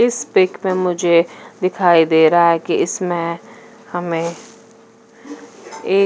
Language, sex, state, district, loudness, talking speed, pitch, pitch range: Hindi, female, Punjab, Fazilka, -16 LUFS, 110 wpm, 180 Hz, 170-235 Hz